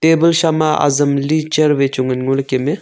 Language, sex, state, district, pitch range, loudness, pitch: Wancho, male, Arunachal Pradesh, Longding, 135-155 Hz, -15 LUFS, 145 Hz